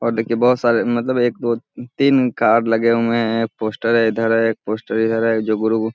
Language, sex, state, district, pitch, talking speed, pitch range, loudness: Hindi, male, Bihar, Sitamarhi, 115 Hz, 220 wpm, 115-120 Hz, -18 LUFS